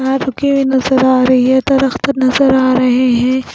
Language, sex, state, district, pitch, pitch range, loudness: Hindi, female, Punjab, Pathankot, 260 Hz, 255-270 Hz, -12 LUFS